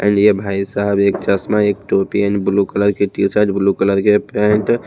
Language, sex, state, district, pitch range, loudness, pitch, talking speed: Hindi, male, Himachal Pradesh, Shimla, 100-105 Hz, -16 LUFS, 100 Hz, 220 wpm